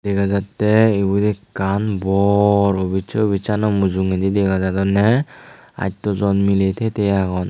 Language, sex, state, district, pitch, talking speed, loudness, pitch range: Chakma, male, Tripura, Unakoti, 100 Hz, 130 wpm, -18 LUFS, 95-105 Hz